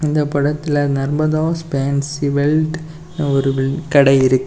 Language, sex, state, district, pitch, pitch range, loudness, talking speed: Tamil, male, Tamil Nadu, Kanyakumari, 145 Hz, 140-155 Hz, -17 LUFS, 105 wpm